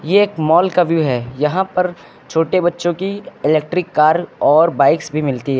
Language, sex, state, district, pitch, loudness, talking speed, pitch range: Hindi, male, Uttar Pradesh, Lucknow, 165 Hz, -16 LUFS, 195 wpm, 150-180 Hz